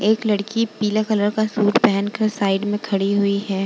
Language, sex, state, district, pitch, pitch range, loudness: Hindi, female, Bihar, Vaishali, 210 Hz, 200-215 Hz, -20 LUFS